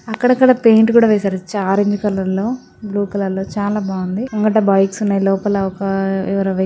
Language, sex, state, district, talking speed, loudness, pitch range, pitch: Telugu, female, Telangana, Nalgonda, 170 wpm, -16 LUFS, 195-215 Hz, 200 Hz